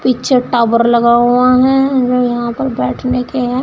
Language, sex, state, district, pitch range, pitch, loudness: Hindi, female, Uttar Pradesh, Shamli, 240-255 Hz, 250 Hz, -12 LUFS